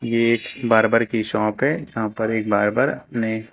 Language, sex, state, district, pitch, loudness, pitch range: Hindi, male, Uttar Pradesh, Lucknow, 110 Hz, -21 LUFS, 110-115 Hz